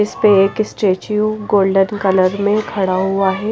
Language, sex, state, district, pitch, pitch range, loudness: Hindi, female, Himachal Pradesh, Shimla, 200 Hz, 195-210 Hz, -15 LUFS